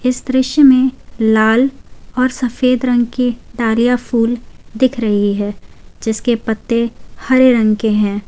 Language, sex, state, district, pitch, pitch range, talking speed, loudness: Hindi, female, Jharkhand, Garhwa, 240 Hz, 220-255 Hz, 135 wpm, -15 LUFS